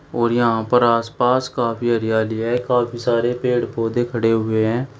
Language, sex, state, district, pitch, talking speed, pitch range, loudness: Hindi, male, Uttar Pradesh, Shamli, 120 Hz, 180 wpm, 115-125 Hz, -19 LUFS